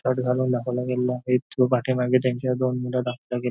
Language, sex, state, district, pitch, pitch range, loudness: Marathi, male, Maharashtra, Nagpur, 125 Hz, 125-130 Hz, -24 LUFS